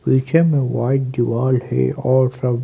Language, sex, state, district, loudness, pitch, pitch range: Hindi, male, Haryana, Rohtak, -18 LUFS, 130 Hz, 120-130 Hz